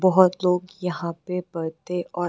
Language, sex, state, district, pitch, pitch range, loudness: Hindi, female, Uttar Pradesh, Gorakhpur, 180 Hz, 175-180 Hz, -24 LUFS